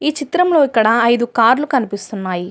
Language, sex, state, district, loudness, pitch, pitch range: Telugu, female, Telangana, Hyderabad, -15 LUFS, 235 Hz, 210-290 Hz